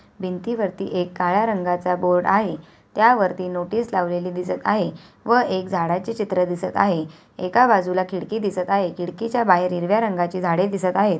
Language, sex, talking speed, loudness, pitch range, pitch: Awadhi, female, 155 wpm, -21 LUFS, 180-205 Hz, 185 Hz